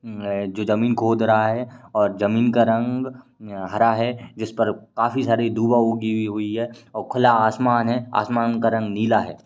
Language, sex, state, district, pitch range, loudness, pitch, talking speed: Hindi, male, Uttar Pradesh, Varanasi, 110-120 Hz, -21 LUFS, 115 Hz, 170 wpm